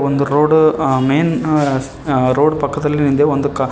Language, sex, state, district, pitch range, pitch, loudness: Kannada, male, Karnataka, Koppal, 135-150 Hz, 145 Hz, -15 LUFS